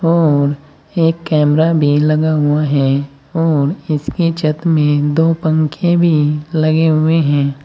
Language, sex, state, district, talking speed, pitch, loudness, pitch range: Hindi, male, Uttar Pradesh, Saharanpur, 135 wpm, 155 Hz, -14 LUFS, 145-165 Hz